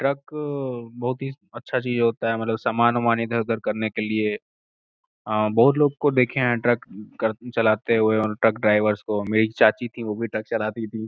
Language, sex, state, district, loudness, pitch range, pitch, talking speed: Hindi, male, Uttar Pradesh, Gorakhpur, -23 LUFS, 110-120 Hz, 115 Hz, 190 wpm